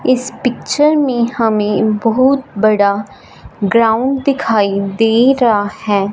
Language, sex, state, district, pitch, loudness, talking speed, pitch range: Hindi, female, Punjab, Fazilka, 225 Hz, -14 LUFS, 105 wpm, 210-255 Hz